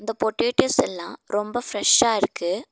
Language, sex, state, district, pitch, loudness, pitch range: Tamil, female, Tamil Nadu, Nilgiris, 215 Hz, -21 LUFS, 205-240 Hz